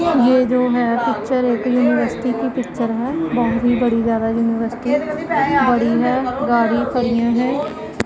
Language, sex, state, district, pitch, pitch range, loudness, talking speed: Hindi, female, Punjab, Pathankot, 245 Hz, 235-255 Hz, -18 LUFS, 140 wpm